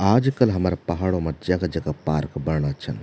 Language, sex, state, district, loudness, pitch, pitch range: Garhwali, male, Uttarakhand, Tehri Garhwal, -23 LUFS, 85 Hz, 75-95 Hz